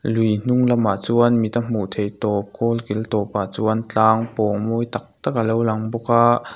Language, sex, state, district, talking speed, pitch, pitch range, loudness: Mizo, male, Mizoram, Aizawl, 210 wpm, 115 Hz, 105-120 Hz, -20 LUFS